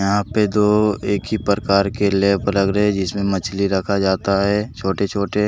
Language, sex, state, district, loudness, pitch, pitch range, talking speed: Hindi, male, Jharkhand, Deoghar, -18 LUFS, 100 Hz, 100-105 Hz, 185 wpm